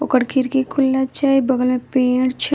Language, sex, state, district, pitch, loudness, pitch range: Maithili, female, Bihar, Madhepura, 265 Hz, -18 LUFS, 255-270 Hz